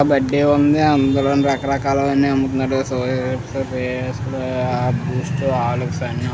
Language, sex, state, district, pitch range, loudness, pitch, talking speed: Telugu, male, Andhra Pradesh, Visakhapatnam, 130-140 Hz, -19 LUFS, 135 Hz, 115 wpm